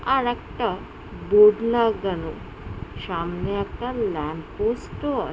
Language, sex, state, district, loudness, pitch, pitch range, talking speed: Bengali, female, West Bengal, Jhargram, -23 LUFS, 205 Hz, 170-235 Hz, 115 wpm